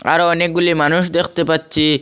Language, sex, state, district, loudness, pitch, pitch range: Bengali, male, Assam, Hailakandi, -15 LUFS, 170 Hz, 160-175 Hz